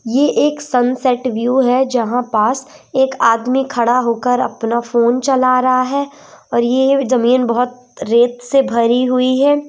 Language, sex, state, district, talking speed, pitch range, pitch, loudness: Hindi, female, Madhya Pradesh, Umaria, 155 wpm, 240-265 Hz, 250 Hz, -15 LUFS